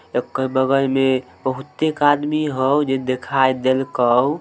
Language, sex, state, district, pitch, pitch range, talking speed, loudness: Maithili, male, Bihar, Samastipur, 135 Hz, 130-145 Hz, 120 wpm, -19 LUFS